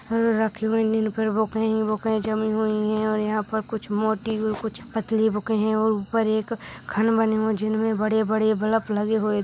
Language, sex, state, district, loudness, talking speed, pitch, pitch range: Hindi, male, Bihar, Darbhanga, -24 LUFS, 210 wpm, 220 Hz, 215-220 Hz